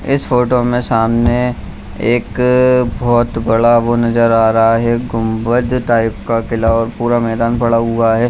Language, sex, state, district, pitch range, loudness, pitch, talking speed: Hindi, male, Bihar, Jamui, 115-120 Hz, -14 LUFS, 115 Hz, 160 wpm